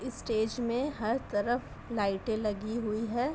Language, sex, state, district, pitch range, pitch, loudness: Hindi, female, Uttar Pradesh, Jyotiba Phule Nagar, 215-240 Hz, 230 Hz, -32 LUFS